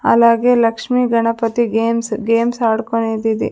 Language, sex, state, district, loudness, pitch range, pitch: Telugu, female, Andhra Pradesh, Sri Satya Sai, -16 LUFS, 225-235 Hz, 230 Hz